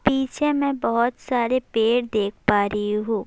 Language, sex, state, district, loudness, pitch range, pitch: Urdu, female, Bihar, Saharsa, -22 LUFS, 210-260 Hz, 235 Hz